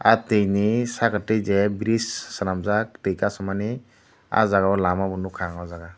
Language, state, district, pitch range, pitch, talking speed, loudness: Kokborok, Tripura, Dhalai, 95-110 Hz, 100 Hz, 160 wpm, -23 LUFS